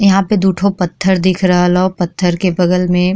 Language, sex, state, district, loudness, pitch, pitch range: Bhojpuri, female, Uttar Pradesh, Gorakhpur, -13 LUFS, 185 Hz, 180-190 Hz